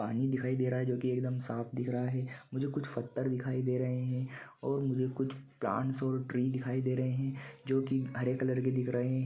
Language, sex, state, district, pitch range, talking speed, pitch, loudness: Hindi, male, Chhattisgarh, Bilaspur, 125-130 Hz, 240 wpm, 130 Hz, -34 LUFS